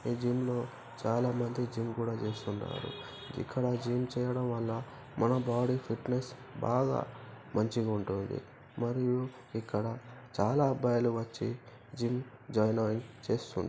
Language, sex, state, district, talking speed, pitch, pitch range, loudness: Telugu, male, Telangana, Karimnagar, 125 wpm, 120 Hz, 115-125 Hz, -34 LUFS